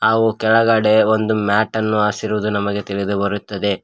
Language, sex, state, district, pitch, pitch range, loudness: Kannada, male, Karnataka, Koppal, 105 Hz, 100-110 Hz, -17 LUFS